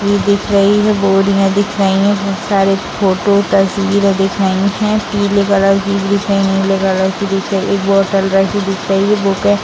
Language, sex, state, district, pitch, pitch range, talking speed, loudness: Hindi, female, Bihar, Gopalganj, 200 Hz, 195-200 Hz, 210 wpm, -13 LUFS